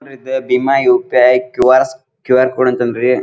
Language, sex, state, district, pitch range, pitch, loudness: Kannada, male, Karnataka, Dharwad, 125-135 Hz, 130 Hz, -13 LUFS